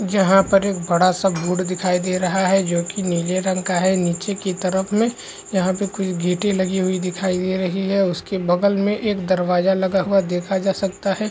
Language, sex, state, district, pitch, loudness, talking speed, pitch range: Hindi, male, Chhattisgarh, Raigarh, 190 Hz, -20 LUFS, 210 wpm, 185-195 Hz